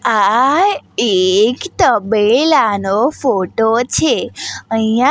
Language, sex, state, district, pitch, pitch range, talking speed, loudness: Gujarati, female, Gujarat, Gandhinagar, 225 Hz, 205-285 Hz, 80 wpm, -14 LUFS